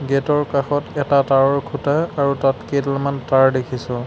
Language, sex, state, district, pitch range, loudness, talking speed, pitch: Assamese, male, Assam, Sonitpur, 135-145 Hz, -18 LUFS, 160 wpm, 140 Hz